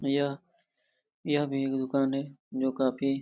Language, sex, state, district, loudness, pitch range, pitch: Hindi, male, Jharkhand, Jamtara, -30 LUFS, 135-140 Hz, 135 Hz